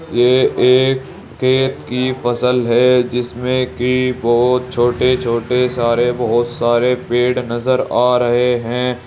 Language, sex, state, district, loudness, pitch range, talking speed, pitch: Hindi, male, Uttar Pradesh, Saharanpur, -15 LUFS, 120-125 Hz, 125 wpm, 125 Hz